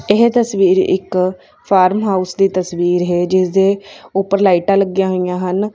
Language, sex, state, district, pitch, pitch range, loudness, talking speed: Punjabi, female, Punjab, Fazilka, 190 Hz, 185-195 Hz, -15 LUFS, 145 wpm